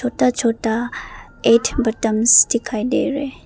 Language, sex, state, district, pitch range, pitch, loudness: Hindi, female, Arunachal Pradesh, Papum Pare, 225-255 Hz, 235 Hz, -17 LUFS